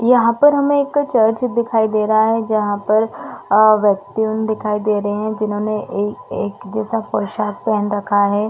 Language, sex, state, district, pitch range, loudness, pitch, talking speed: Hindi, female, Chhattisgarh, Bastar, 205-225 Hz, -17 LUFS, 215 Hz, 190 wpm